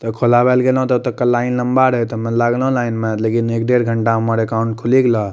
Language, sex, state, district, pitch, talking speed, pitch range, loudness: Maithili, male, Bihar, Madhepura, 120 Hz, 270 wpm, 115-125 Hz, -16 LUFS